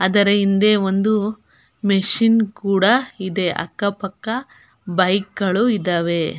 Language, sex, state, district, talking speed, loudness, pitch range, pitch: Kannada, female, Karnataka, Belgaum, 105 wpm, -19 LUFS, 190-215 Hz, 200 Hz